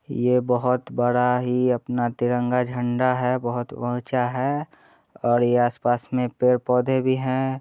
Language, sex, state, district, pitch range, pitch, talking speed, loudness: Hindi, male, Bihar, Muzaffarpur, 120-125 Hz, 125 Hz, 150 wpm, -23 LUFS